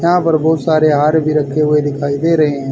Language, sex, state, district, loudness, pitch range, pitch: Hindi, male, Haryana, Rohtak, -14 LUFS, 145-160 Hz, 155 Hz